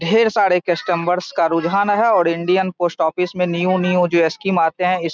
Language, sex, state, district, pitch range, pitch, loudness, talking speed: Hindi, male, Bihar, Saharsa, 170-185 Hz, 180 Hz, -17 LUFS, 220 wpm